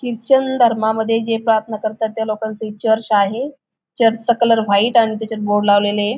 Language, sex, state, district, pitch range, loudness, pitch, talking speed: Marathi, female, Maharashtra, Aurangabad, 215-230 Hz, -17 LUFS, 220 Hz, 165 wpm